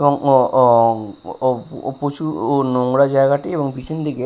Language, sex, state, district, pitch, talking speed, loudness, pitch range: Bengali, male, Odisha, Nuapada, 135 Hz, 140 wpm, -17 LUFS, 125-145 Hz